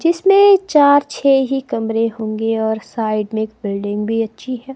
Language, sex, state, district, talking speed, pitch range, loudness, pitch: Hindi, female, Himachal Pradesh, Shimla, 165 wpm, 220-280 Hz, -16 LUFS, 225 Hz